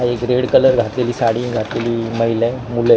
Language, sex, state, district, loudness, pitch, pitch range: Marathi, male, Maharashtra, Mumbai Suburban, -17 LUFS, 120 Hz, 115-125 Hz